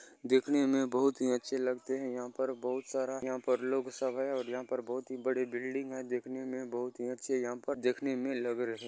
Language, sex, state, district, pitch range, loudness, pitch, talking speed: Maithili, male, Bihar, Bhagalpur, 125-130 Hz, -34 LUFS, 130 Hz, 235 wpm